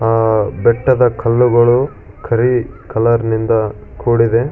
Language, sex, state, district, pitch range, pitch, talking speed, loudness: Kannada, male, Karnataka, Shimoga, 110-120 Hz, 115 Hz, 80 wpm, -14 LUFS